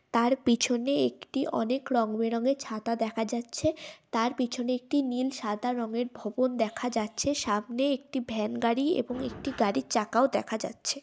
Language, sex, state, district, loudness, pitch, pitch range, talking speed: Bengali, female, West Bengal, Malda, -29 LUFS, 245 Hz, 230-270 Hz, 175 wpm